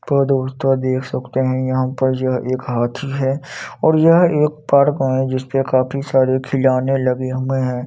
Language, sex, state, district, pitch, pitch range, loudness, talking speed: Hindi, male, Chandigarh, Chandigarh, 130 Hz, 130-135 Hz, -17 LUFS, 175 wpm